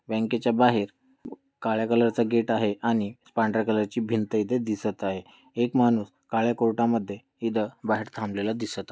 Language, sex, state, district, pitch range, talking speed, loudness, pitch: Marathi, male, Maharashtra, Dhule, 105-120 Hz, 155 wpm, -26 LUFS, 115 Hz